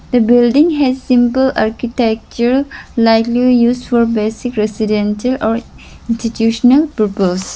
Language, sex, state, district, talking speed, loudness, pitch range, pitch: English, female, Arunachal Pradesh, Lower Dibang Valley, 105 wpm, -14 LUFS, 220-250 Hz, 235 Hz